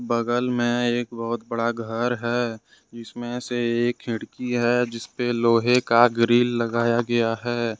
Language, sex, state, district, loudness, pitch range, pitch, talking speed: Hindi, male, Jharkhand, Ranchi, -23 LUFS, 115-120 Hz, 120 Hz, 155 wpm